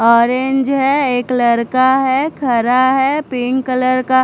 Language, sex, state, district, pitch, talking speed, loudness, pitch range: Hindi, female, Punjab, Fazilka, 255 Hz, 140 wpm, -14 LUFS, 250-270 Hz